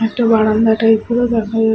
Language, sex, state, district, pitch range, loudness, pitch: Bengali, female, West Bengal, Malda, 220-230 Hz, -14 LUFS, 225 Hz